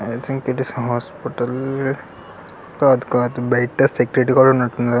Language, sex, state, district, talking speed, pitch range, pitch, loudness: Telugu, male, Andhra Pradesh, Krishna, 145 wpm, 120-135 Hz, 125 Hz, -18 LUFS